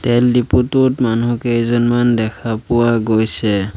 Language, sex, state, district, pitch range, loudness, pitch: Assamese, male, Assam, Sonitpur, 110-120 Hz, -15 LUFS, 120 Hz